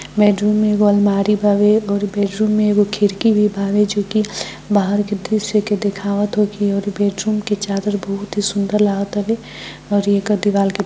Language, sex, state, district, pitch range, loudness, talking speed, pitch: Hindi, female, Bihar, Gopalganj, 200-210 Hz, -17 LUFS, 145 wpm, 205 Hz